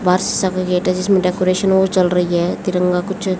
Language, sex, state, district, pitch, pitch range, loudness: Hindi, female, Haryana, Jhajjar, 185 Hz, 180-190 Hz, -16 LUFS